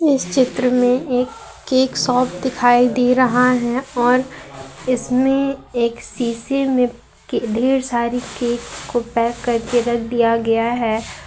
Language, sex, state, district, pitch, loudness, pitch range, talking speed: Hindi, female, Jharkhand, Garhwa, 245 Hz, -18 LUFS, 235-255 Hz, 135 wpm